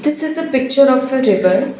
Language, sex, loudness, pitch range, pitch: English, female, -14 LUFS, 260-300 Hz, 265 Hz